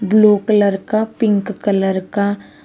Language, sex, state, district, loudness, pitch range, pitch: Hindi, female, Uttar Pradesh, Shamli, -16 LUFS, 200-215 Hz, 205 Hz